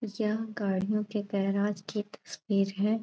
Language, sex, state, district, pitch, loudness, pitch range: Hindi, female, Bihar, Gaya, 210 Hz, -31 LUFS, 200-215 Hz